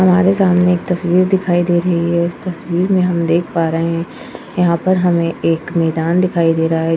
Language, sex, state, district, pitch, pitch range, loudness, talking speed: Hindi, female, Uttar Pradesh, Jyotiba Phule Nagar, 175 Hz, 165-185 Hz, -15 LUFS, 215 wpm